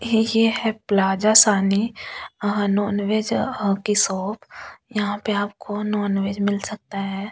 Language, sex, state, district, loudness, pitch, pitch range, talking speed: Hindi, female, Delhi, New Delhi, -21 LUFS, 205 Hz, 200-215 Hz, 130 wpm